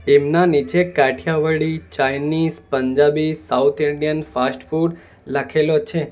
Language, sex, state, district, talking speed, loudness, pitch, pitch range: Gujarati, male, Gujarat, Valsad, 110 wpm, -19 LUFS, 155 Hz, 140-160 Hz